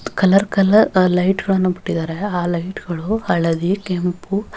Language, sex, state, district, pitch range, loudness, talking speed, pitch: Kannada, female, Karnataka, Bellary, 175-195 Hz, -18 LUFS, 145 wpm, 185 Hz